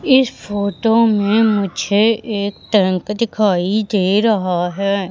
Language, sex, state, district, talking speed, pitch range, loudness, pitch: Hindi, female, Madhya Pradesh, Katni, 115 wpm, 195-220 Hz, -16 LUFS, 205 Hz